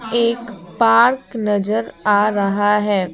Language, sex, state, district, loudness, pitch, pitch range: Hindi, female, Bihar, Patna, -17 LUFS, 210 Hz, 205-230 Hz